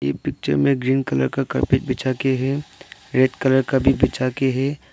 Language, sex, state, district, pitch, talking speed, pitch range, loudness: Hindi, male, Arunachal Pradesh, Lower Dibang Valley, 130 Hz, 205 wpm, 125-135 Hz, -20 LUFS